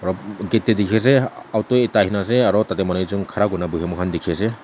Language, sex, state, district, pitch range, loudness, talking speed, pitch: Nagamese, male, Nagaland, Kohima, 95-110 Hz, -19 LUFS, 245 wpm, 100 Hz